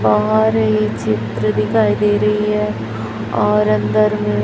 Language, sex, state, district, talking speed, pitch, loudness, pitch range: Hindi, male, Chhattisgarh, Raipur, 150 wpm, 105 Hz, -16 LUFS, 105-110 Hz